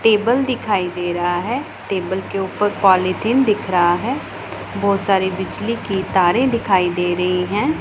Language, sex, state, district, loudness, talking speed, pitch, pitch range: Hindi, female, Punjab, Pathankot, -18 LUFS, 160 wpm, 195 Hz, 180-225 Hz